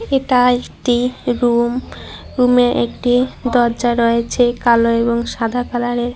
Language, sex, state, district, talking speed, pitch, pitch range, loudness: Bengali, female, West Bengal, Cooch Behar, 125 wpm, 245 Hz, 235-245 Hz, -16 LUFS